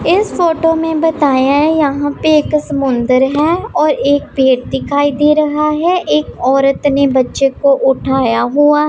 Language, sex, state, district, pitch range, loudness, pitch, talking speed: Hindi, female, Punjab, Pathankot, 270-305 Hz, -13 LUFS, 290 Hz, 160 wpm